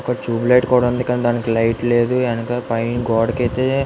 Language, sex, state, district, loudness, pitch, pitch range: Telugu, male, Andhra Pradesh, Visakhapatnam, -18 LUFS, 120 Hz, 115-125 Hz